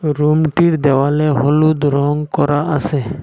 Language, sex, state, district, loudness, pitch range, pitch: Bengali, male, Assam, Hailakandi, -15 LUFS, 145-155 Hz, 150 Hz